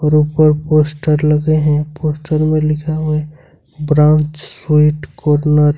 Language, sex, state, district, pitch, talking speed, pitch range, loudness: Hindi, male, Jharkhand, Ranchi, 150 Hz, 145 wpm, 150-155 Hz, -14 LUFS